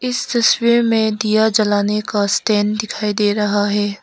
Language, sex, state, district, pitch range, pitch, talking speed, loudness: Hindi, female, Arunachal Pradesh, Lower Dibang Valley, 205-220 Hz, 215 Hz, 150 wpm, -16 LUFS